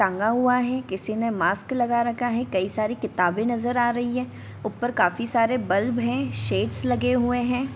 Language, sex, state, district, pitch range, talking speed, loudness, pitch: Hindi, female, Bihar, Darbhanga, 195-245 Hz, 195 wpm, -24 LUFS, 235 Hz